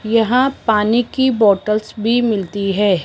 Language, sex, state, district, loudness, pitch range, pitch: Hindi, female, Rajasthan, Jaipur, -16 LUFS, 205-240 Hz, 220 Hz